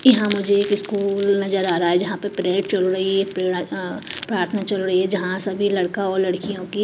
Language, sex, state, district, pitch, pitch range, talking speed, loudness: Hindi, female, Maharashtra, Mumbai Suburban, 195 Hz, 185-200 Hz, 220 wpm, -21 LUFS